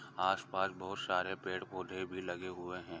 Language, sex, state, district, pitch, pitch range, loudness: Hindi, male, Andhra Pradesh, Guntur, 90 Hz, 90-95 Hz, -39 LUFS